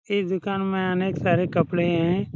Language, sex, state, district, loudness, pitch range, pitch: Hindi, male, Bihar, Saran, -23 LUFS, 175-190 Hz, 185 Hz